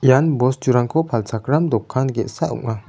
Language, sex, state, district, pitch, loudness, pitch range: Garo, male, Meghalaya, West Garo Hills, 125 Hz, -19 LUFS, 115-135 Hz